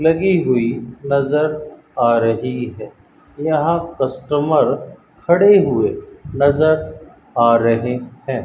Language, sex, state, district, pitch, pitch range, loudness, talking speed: Hindi, male, Rajasthan, Bikaner, 140 Hz, 125-160 Hz, -17 LUFS, 100 wpm